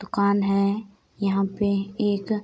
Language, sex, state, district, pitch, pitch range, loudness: Hindi, female, Bihar, Saharsa, 200 Hz, 195-205 Hz, -24 LUFS